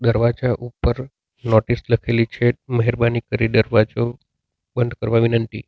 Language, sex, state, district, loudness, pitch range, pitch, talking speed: Gujarati, male, Gujarat, Navsari, -20 LUFS, 115-120 Hz, 115 Hz, 115 wpm